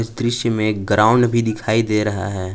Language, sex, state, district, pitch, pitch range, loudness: Hindi, male, Jharkhand, Palamu, 110 Hz, 105-115 Hz, -18 LUFS